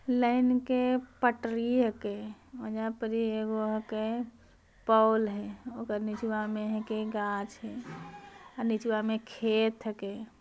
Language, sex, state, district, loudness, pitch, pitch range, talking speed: Magahi, female, Bihar, Jamui, -31 LUFS, 220 Hz, 215-235 Hz, 115 wpm